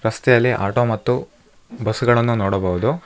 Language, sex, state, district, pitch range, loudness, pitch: Kannada, male, Karnataka, Bangalore, 110-125 Hz, -18 LUFS, 115 Hz